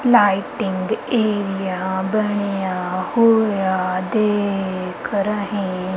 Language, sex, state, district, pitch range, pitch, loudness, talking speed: Punjabi, female, Punjab, Kapurthala, 185-210 Hz, 200 Hz, -20 LUFS, 60 wpm